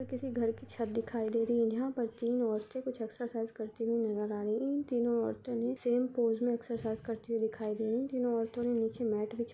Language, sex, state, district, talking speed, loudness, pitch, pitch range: Hindi, female, Maharashtra, Sindhudurg, 240 wpm, -34 LUFS, 230 Hz, 225-240 Hz